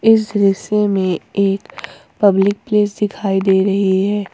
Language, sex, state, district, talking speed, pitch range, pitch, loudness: Hindi, female, Jharkhand, Ranchi, 140 wpm, 195-210 Hz, 200 Hz, -16 LUFS